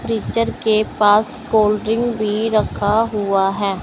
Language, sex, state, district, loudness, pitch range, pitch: Hindi, male, Chandigarh, Chandigarh, -17 LUFS, 205-225 Hz, 215 Hz